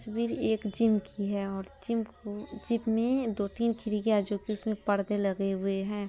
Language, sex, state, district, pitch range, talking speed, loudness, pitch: Hindi, female, Bihar, Madhepura, 200-225 Hz, 170 wpm, -31 LUFS, 210 Hz